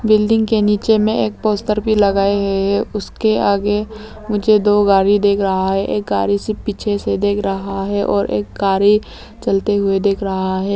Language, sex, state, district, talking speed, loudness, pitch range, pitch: Hindi, female, Arunachal Pradesh, Lower Dibang Valley, 185 wpm, -16 LUFS, 195-210 Hz, 205 Hz